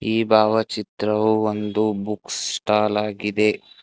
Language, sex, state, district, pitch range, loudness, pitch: Kannada, male, Karnataka, Bangalore, 105-110 Hz, -21 LUFS, 105 Hz